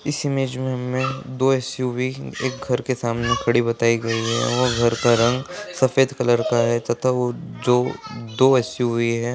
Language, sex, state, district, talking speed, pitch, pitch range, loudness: Hindi, male, Bihar, Purnia, 180 wpm, 125 Hz, 120-130 Hz, -21 LUFS